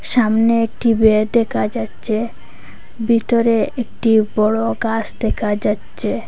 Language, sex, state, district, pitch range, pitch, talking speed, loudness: Bengali, female, Assam, Hailakandi, 215-230 Hz, 225 Hz, 105 wpm, -17 LUFS